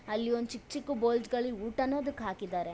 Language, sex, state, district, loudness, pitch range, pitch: Kannada, female, Karnataka, Bellary, -33 LUFS, 215-265 Hz, 235 Hz